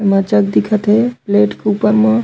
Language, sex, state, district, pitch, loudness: Chhattisgarhi, male, Chhattisgarh, Raigarh, 200 Hz, -14 LUFS